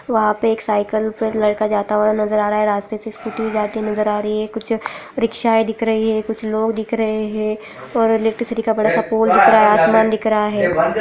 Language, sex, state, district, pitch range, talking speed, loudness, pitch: Hindi, female, Bihar, Purnia, 215-225 Hz, 240 wpm, -17 LUFS, 220 Hz